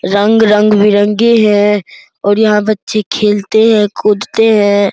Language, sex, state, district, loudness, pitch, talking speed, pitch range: Hindi, male, Bihar, Araria, -10 LUFS, 210 Hz, 145 wpm, 205-215 Hz